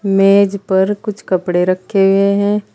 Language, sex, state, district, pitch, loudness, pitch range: Hindi, female, Uttar Pradesh, Saharanpur, 195 Hz, -14 LUFS, 190-200 Hz